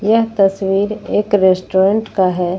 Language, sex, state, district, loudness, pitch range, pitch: Hindi, female, Jharkhand, Ranchi, -15 LUFS, 190-210 Hz, 195 Hz